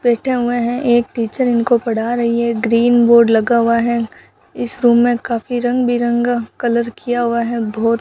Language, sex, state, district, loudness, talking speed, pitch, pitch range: Hindi, female, Rajasthan, Bikaner, -15 LUFS, 195 wpm, 235 Hz, 235-240 Hz